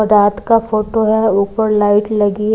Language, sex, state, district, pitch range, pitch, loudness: Hindi, female, Maharashtra, Mumbai Suburban, 205-220 Hz, 215 Hz, -14 LUFS